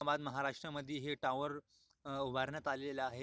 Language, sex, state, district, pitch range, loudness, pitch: Marathi, male, Maharashtra, Aurangabad, 130-145 Hz, -41 LUFS, 140 Hz